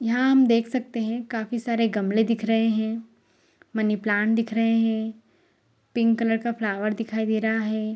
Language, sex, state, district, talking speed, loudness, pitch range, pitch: Hindi, female, Bihar, Saharsa, 180 wpm, -24 LUFS, 220-230 Hz, 225 Hz